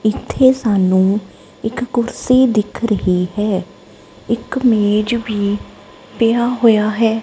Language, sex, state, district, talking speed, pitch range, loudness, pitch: Punjabi, female, Punjab, Kapurthala, 110 wpm, 205-235 Hz, -16 LUFS, 220 Hz